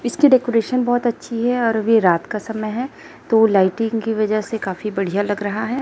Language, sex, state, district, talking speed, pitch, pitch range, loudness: Hindi, female, Chhattisgarh, Raipur, 215 wpm, 225 Hz, 210-240 Hz, -19 LUFS